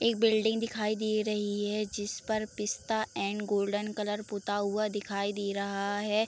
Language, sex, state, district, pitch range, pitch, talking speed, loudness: Hindi, female, Bihar, Sitamarhi, 205-215 Hz, 210 Hz, 165 wpm, -31 LUFS